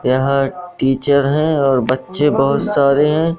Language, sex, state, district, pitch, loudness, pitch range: Hindi, male, Madhya Pradesh, Katni, 140 Hz, -15 LUFS, 135-155 Hz